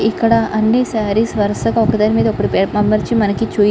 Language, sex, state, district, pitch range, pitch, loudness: Telugu, female, Andhra Pradesh, Guntur, 210-225 Hz, 215 Hz, -15 LUFS